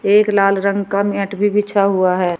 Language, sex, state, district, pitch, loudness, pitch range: Hindi, female, Uttar Pradesh, Shamli, 200 Hz, -16 LUFS, 195-205 Hz